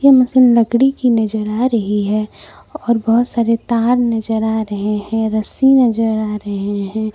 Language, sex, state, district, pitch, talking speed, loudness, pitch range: Hindi, female, Jharkhand, Palamu, 225 Hz, 175 wpm, -15 LUFS, 215-245 Hz